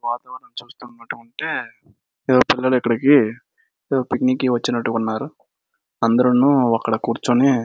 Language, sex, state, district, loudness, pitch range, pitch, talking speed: Telugu, male, Andhra Pradesh, Srikakulam, -19 LUFS, 115-130 Hz, 125 Hz, 110 wpm